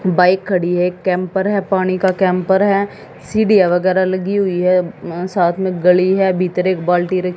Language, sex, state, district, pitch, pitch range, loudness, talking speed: Hindi, female, Haryana, Jhajjar, 185 Hz, 180-190 Hz, -16 LUFS, 185 wpm